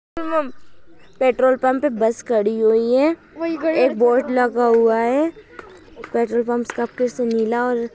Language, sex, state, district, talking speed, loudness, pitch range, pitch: Hindi, male, Maharashtra, Nagpur, 135 wpm, -19 LUFS, 235-295 Hz, 250 Hz